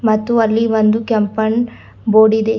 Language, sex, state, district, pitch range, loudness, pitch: Kannada, female, Karnataka, Bidar, 220-225 Hz, -14 LUFS, 220 Hz